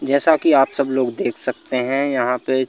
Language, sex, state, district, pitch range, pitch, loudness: Hindi, male, Madhya Pradesh, Bhopal, 130-140 Hz, 135 Hz, -19 LUFS